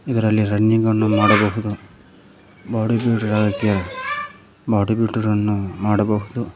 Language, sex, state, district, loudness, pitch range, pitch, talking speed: Kannada, male, Karnataka, Koppal, -19 LUFS, 105-110 Hz, 105 Hz, 100 wpm